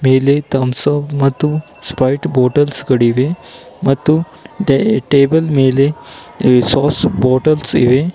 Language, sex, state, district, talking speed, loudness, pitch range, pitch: Kannada, male, Karnataka, Bidar, 105 wpm, -14 LUFS, 130-150 Hz, 140 Hz